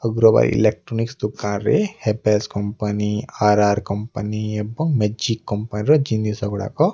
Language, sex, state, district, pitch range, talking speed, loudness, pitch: Odia, male, Odisha, Nuapada, 105-115 Hz, 140 wpm, -20 LUFS, 105 Hz